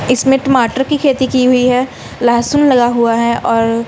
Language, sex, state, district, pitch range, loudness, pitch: Hindi, female, Punjab, Kapurthala, 235-265 Hz, -12 LUFS, 250 Hz